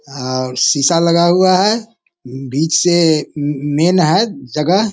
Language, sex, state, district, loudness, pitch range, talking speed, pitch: Hindi, male, Bihar, Sitamarhi, -14 LUFS, 140-180 Hz, 120 wpm, 160 Hz